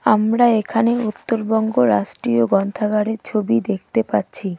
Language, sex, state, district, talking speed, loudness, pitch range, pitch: Bengali, female, West Bengal, Cooch Behar, 105 wpm, -19 LUFS, 185-225 Hz, 215 Hz